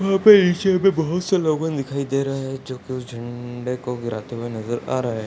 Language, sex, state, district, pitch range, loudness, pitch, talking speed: Hindi, male, Bihar, Sitamarhi, 120-160 Hz, -21 LUFS, 135 Hz, 225 wpm